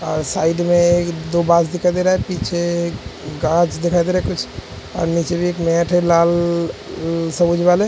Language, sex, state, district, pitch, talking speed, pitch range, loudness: Hindi, male, Uttar Pradesh, Hamirpur, 170 Hz, 105 wpm, 170-175 Hz, -18 LUFS